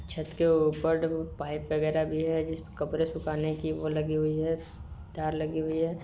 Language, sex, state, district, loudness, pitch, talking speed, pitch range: Hindi, male, Bihar, Sitamarhi, -30 LUFS, 155 Hz, 180 wpm, 155-160 Hz